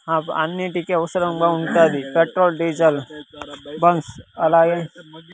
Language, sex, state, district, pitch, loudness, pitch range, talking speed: Telugu, male, Andhra Pradesh, Sri Satya Sai, 165 Hz, -19 LUFS, 155-170 Hz, 90 wpm